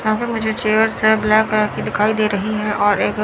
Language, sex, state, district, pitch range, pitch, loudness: Hindi, female, Chandigarh, Chandigarh, 210-220 Hz, 215 Hz, -17 LUFS